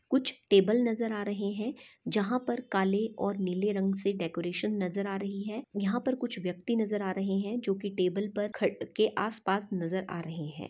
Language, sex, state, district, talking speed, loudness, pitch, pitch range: Hindi, female, Chhattisgarh, Bastar, 205 wpm, -31 LUFS, 205 Hz, 190-225 Hz